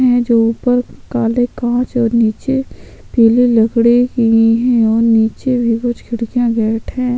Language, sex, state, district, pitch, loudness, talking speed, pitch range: Hindi, female, Chhattisgarh, Sukma, 235 Hz, -14 LUFS, 150 wpm, 230-245 Hz